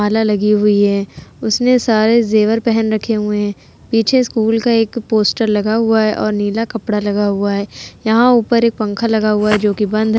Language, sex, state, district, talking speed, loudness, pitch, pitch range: Hindi, female, Uttar Pradesh, Jalaun, 210 wpm, -15 LUFS, 215 Hz, 210-225 Hz